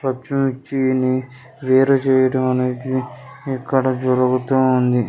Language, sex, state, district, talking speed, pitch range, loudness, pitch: Telugu, male, Telangana, Karimnagar, 80 wpm, 125-130 Hz, -18 LUFS, 130 Hz